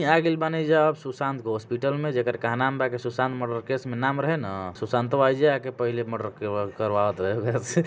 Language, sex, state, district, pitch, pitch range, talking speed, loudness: Maithili, male, Bihar, Samastipur, 125 Hz, 115-140 Hz, 230 wpm, -25 LUFS